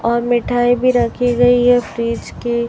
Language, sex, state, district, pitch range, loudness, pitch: Hindi, male, Chhattisgarh, Raipur, 235-245 Hz, -15 LUFS, 240 Hz